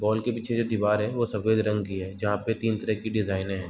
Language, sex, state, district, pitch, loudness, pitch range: Hindi, male, Bihar, Gopalganj, 110 Hz, -27 LUFS, 105-110 Hz